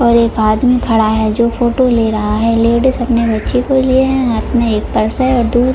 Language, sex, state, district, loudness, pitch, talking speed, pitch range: Hindi, female, Jharkhand, Jamtara, -13 LUFS, 235 Hz, 260 wpm, 220-250 Hz